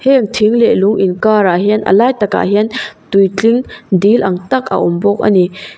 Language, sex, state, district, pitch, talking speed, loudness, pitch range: Mizo, female, Mizoram, Aizawl, 210 Hz, 230 wpm, -12 LUFS, 190-225 Hz